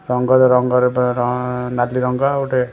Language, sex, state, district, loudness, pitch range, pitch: Odia, male, Odisha, Khordha, -16 LUFS, 125-130 Hz, 125 Hz